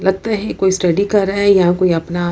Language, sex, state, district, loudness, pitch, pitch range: Hindi, female, Bihar, Lakhisarai, -15 LUFS, 190 Hz, 175-200 Hz